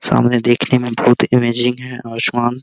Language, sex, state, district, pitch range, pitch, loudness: Hindi, male, Bihar, Araria, 120-125 Hz, 120 Hz, -15 LUFS